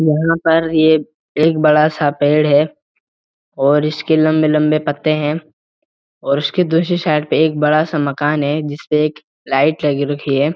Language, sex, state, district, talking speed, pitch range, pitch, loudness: Hindi, male, Uttarakhand, Uttarkashi, 155 wpm, 145-160 Hz, 150 Hz, -15 LUFS